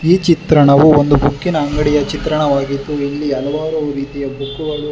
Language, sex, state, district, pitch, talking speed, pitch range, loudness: Kannada, male, Karnataka, Bangalore, 150 Hz, 120 wpm, 140-155 Hz, -14 LUFS